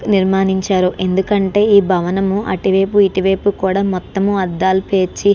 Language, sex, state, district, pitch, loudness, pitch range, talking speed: Telugu, female, Andhra Pradesh, Krishna, 195 Hz, -15 LUFS, 190-200 Hz, 155 wpm